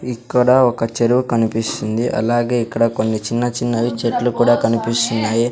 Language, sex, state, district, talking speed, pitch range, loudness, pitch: Telugu, male, Andhra Pradesh, Sri Satya Sai, 140 wpm, 115-120 Hz, -17 LUFS, 120 Hz